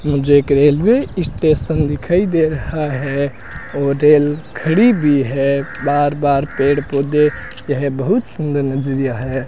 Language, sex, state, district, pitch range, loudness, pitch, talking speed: Hindi, male, Rajasthan, Bikaner, 135-155 Hz, -16 LUFS, 145 Hz, 140 wpm